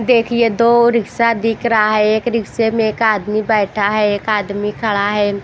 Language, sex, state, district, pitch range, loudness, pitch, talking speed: Hindi, female, Haryana, Jhajjar, 210-230 Hz, -15 LUFS, 220 Hz, 185 wpm